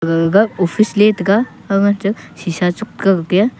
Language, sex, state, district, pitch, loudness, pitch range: Wancho, male, Arunachal Pradesh, Longding, 195 Hz, -15 LUFS, 180-210 Hz